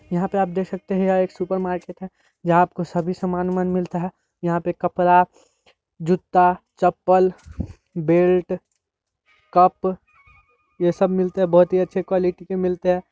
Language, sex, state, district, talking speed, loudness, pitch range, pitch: Hindi, male, Bihar, Vaishali, 185 wpm, -21 LUFS, 175-185 Hz, 180 Hz